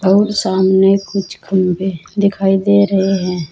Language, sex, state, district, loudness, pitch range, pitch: Hindi, female, Uttar Pradesh, Saharanpur, -14 LUFS, 190-200 Hz, 195 Hz